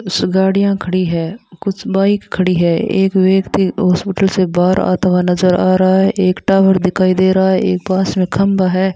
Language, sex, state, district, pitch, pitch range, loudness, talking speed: Hindi, female, Rajasthan, Bikaner, 190 Hz, 185-195 Hz, -14 LUFS, 200 wpm